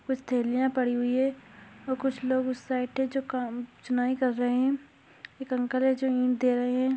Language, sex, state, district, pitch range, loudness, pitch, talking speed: Hindi, female, Rajasthan, Churu, 250-265 Hz, -28 LUFS, 255 Hz, 215 wpm